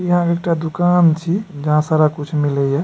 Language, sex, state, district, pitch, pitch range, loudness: Maithili, male, Bihar, Supaul, 160 Hz, 150-175 Hz, -17 LUFS